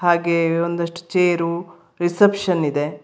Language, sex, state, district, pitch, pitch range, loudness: Kannada, female, Karnataka, Bangalore, 170 Hz, 170-175 Hz, -20 LUFS